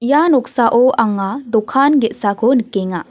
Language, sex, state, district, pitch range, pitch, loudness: Garo, female, Meghalaya, West Garo Hills, 210-265 Hz, 235 Hz, -15 LUFS